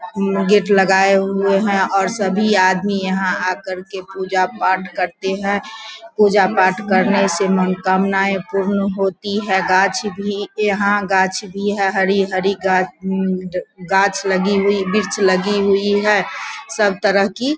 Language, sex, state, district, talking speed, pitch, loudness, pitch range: Hindi, female, Bihar, Vaishali, 135 wpm, 195 Hz, -17 LUFS, 190-200 Hz